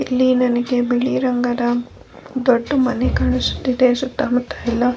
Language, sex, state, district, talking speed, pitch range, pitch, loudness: Kannada, female, Karnataka, Bellary, 135 wpm, 245-255 Hz, 250 Hz, -18 LUFS